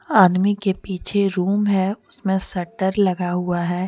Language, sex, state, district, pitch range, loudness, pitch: Hindi, female, Jharkhand, Deoghar, 180-200 Hz, -20 LUFS, 190 Hz